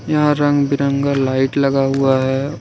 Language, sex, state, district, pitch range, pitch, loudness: Hindi, male, Jharkhand, Ranchi, 135-140 Hz, 140 Hz, -16 LUFS